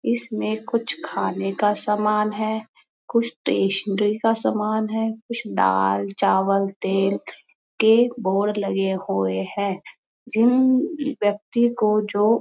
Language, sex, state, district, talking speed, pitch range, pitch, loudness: Hindi, female, Uttar Pradesh, Muzaffarnagar, 125 wpm, 195-230 Hz, 210 Hz, -22 LUFS